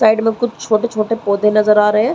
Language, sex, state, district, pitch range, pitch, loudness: Hindi, female, Chhattisgarh, Raigarh, 210-225 Hz, 215 Hz, -15 LUFS